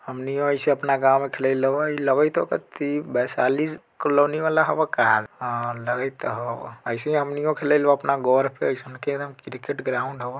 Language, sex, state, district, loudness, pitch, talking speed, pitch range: Bajjika, male, Bihar, Vaishali, -23 LUFS, 140 Hz, 180 wpm, 130-145 Hz